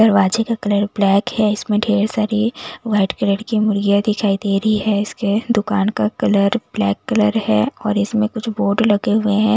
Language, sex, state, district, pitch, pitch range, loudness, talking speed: Hindi, female, Delhi, New Delhi, 210 Hz, 200-215 Hz, -17 LUFS, 190 wpm